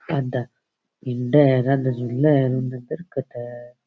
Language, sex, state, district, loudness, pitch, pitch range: Rajasthani, male, Rajasthan, Churu, -21 LUFS, 130 Hz, 125-140 Hz